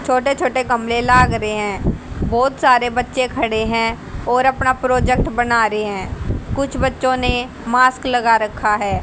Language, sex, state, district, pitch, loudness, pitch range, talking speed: Hindi, female, Haryana, Jhajjar, 245 Hz, -17 LUFS, 225-255 Hz, 160 wpm